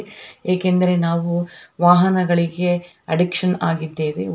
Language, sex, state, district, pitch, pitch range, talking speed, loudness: Kannada, female, Karnataka, Raichur, 175 Hz, 170-180 Hz, 85 wpm, -19 LUFS